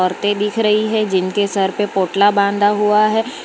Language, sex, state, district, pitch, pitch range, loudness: Hindi, female, Gujarat, Valsad, 205 Hz, 195-210 Hz, -16 LUFS